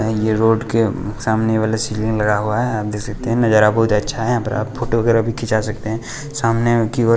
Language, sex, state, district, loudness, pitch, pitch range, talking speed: Hindi, male, Bihar, West Champaran, -18 LUFS, 110 Hz, 110-115 Hz, 235 wpm